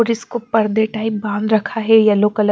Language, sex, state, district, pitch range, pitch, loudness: Hindi, female, Chandigarh, Chandigarh, 210-225 Hz, 220 Hz, -16 LUFS